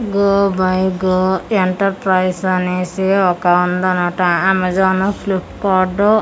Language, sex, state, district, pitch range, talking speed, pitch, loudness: Telugu, female, Andhra Pradesh, Manyam, 185-195 Hz, 115 wpm, 185 Hz, -15 LUFS